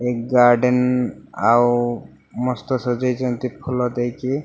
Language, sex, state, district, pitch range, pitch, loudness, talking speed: Odia, male, Odisha, Malkangiri, 120-125 Hz, 125 Hz, -19 LUFS, 120 wpm